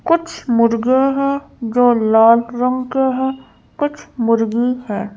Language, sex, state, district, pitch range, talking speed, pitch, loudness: Hindi, female, Madhya Pradesh, Bhopal, 230-270 Hz, 130 wpm, 250 Hz, -16 LUFS